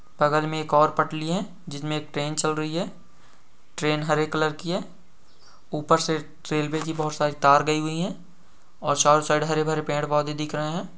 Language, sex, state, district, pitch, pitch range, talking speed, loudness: Hindi, male, Jharkhand, Sahebganj, 155 Hz, 150-160 Hz, 195 wpm, -24 LUFS